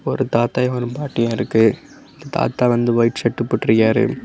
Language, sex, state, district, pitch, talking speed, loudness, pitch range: Tamil, male, Tamil Nadu, Kanyakumari, 120 Hz, 140 wpm, -18 LUFS, 115-125 Hz